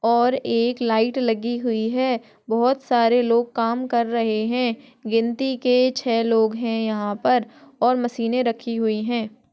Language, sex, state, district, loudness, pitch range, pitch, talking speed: Hindi, female, Bihar, Gaya, -21 LUFS, 230-250 Hz, 235 Hz, 155 wpm